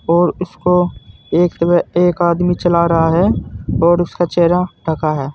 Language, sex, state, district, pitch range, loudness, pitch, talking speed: Hindi, male, Uttar Pradesh, Saharanpur, 165-175 Hz, -15 LUFS, 175 Hz, 155 wpm